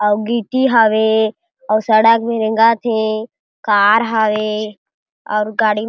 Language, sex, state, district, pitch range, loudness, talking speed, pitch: Chhattisgarhi, female, Chhattisgarh, Jashpur, 215-230 Hz, -15 LUFS, 120 wpm, 220 Hz